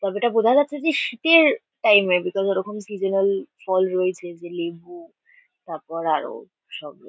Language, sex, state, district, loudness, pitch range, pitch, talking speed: Bengali, female, West Bengal, Kolkata, -21 LUFS, 180-280 Hz, 195 Hz, 160 wpm